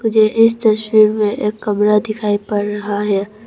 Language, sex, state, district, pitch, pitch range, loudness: Hindi, female, Arunachal Pradesh, Papum Pare, 210 Hz, 205-220 Hz, -15 LUFS